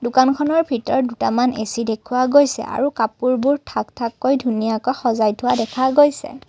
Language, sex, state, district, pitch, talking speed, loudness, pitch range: Assamese, female, Assam, Kamrup Metropolitan, 250 Hz, 150 wpm, -19 LUFS, 230-270 Hz